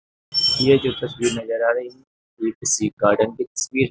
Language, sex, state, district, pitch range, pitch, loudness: Hindi, male, Uttar Pradesh, Jyotiba Phule Nagar, 115-150 Hz, 130 Hz, -20 LUFS